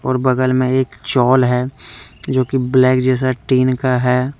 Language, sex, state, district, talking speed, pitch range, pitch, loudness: Hindi, male, Jharkhand, Deoghar, 175 wpm, 125-130 Hz, 130 Hz, -16 LUFS